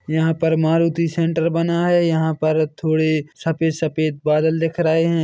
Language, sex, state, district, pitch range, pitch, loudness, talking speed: Hindi, male, Chhattisgarh, Bilaspur, 155-165 Hz, 160 Hz, -19 LUFS, 160 wpm